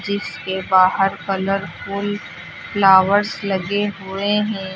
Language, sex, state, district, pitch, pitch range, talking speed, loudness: Hindi, female, Uttar Pradesh, Lucknow, 195 Hz, 190-205 Hz, 90 wpm, -19 LUFS